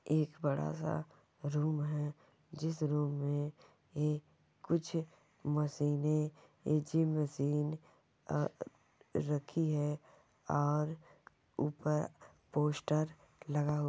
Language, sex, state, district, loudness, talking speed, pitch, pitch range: Hindi, female, Bihar, Jamui, -37 LUFS, 90 wpm, 150 Hz, 145-155 Hz